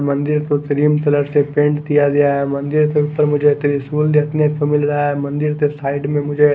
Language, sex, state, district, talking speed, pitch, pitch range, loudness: Hindi, male, Maharashtra, Mumbai Suburban, 220 wpm, 145 Hz, 145-150 Hz, -16 LUFS